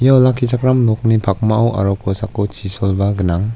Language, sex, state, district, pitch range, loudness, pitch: Garo, male, Meghalaya, South Garo Hills, 100-120 Hz, -16 LUFS, 110 Hz